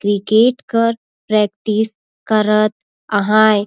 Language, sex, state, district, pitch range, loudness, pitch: Surgujia, female, Chhattisgarh, Sarguja, 210-225 Hz, -16 LUFS, 215 Hz